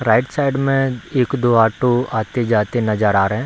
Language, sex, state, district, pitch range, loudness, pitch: Hindi, male, Bihar, Darbhanga, 110-130 Hz, -17 LUFS, 120 Hz